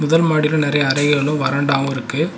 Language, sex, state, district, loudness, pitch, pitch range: Tamil, male, Tamil Nadu, Nilgiris, -17 LUFS, 145 Hz, 140-155 Hz